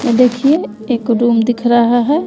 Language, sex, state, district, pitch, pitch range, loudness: Hindi, female, Bihar, West Champaran, 240 Hz, 235-255 Hz, -13 LUFS